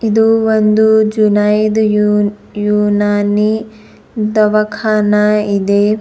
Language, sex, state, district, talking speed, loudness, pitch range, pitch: Kannada, female, Karnataka, Bidar, 70 wpm, -12 LUFS, 210-215 Hz, 210 Hz